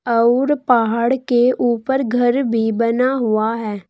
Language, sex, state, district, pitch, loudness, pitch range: Hindi, female, Uttar Pradesh, Saharanpur, 240 Hz, -17 LUFS, 230-255 Hz